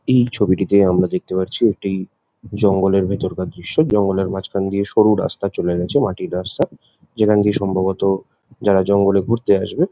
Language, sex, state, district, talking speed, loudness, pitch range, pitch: Bengali, male, West Bengal, Jalpaiguri, 150 wpm, -18 LUFS, 95-105 Hz, 100 Hz